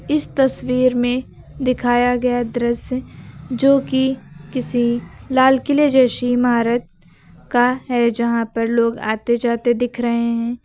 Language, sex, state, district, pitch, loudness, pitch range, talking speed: Hindi, female, Uttar Pradesh, Lucknow, 245 Hz, -18 LUFS, 235-255 Hz, 130 wpm